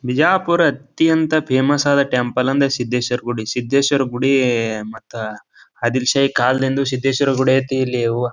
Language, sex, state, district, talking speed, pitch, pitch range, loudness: Kannada, male, Karnataka, Bijapur, 135 wpm, 130 Hz, 120-140 Hz, -17 LUFS